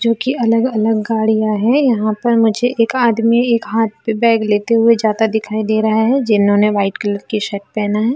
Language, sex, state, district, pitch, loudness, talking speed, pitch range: Hindi, female, Bihar, Jamui, 220 Hz, -15 LUFS, 205 wpm, 215-230 Hz